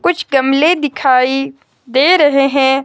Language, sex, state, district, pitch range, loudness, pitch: Hindi, female, Himachal Pradesh, Shimla, 265-300 Hz, -12 LUFS, 275 Hz